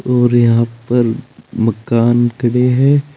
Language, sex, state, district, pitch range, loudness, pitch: Hindi, male, Uttar Pradesh, Saharanpur, 115-125 Hz, -14 LUFS, 120 Hz